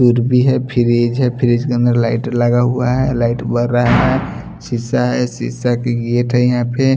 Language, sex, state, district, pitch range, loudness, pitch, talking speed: Hindi, male, Chhattisgarh, Raipur, 120-125 Hz, -15 LUFS, 120 Hz, 205 wpm